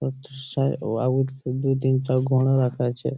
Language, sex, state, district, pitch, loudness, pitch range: Bengali, male, West Bengal, Malda, 130 Hz, -23 LUFS, 130-135 Hz